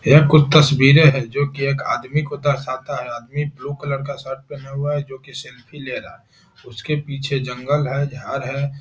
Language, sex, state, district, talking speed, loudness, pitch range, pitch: Hindi, male, Bihar, Jahanabad, 225 wpm, -19 LUFS, 135-145 Hz, 140 Hz